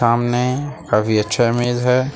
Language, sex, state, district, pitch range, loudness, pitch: Hindi, male, Bihar, Darbhanga, 115-125 Hz, -18 LUFS, 120 Hz